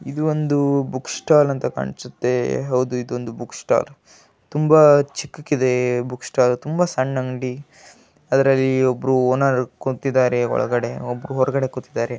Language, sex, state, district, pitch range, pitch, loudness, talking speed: Kannada, male, Karnataka, Gulbarga, 125-140 Hz, 130 Hz, -20 LUFS, 120 wpm